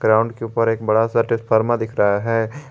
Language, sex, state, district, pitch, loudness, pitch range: Hindi, male, Jharkhand, Garhwa, 115 Hz, -19 LUFS, 110-115 Hz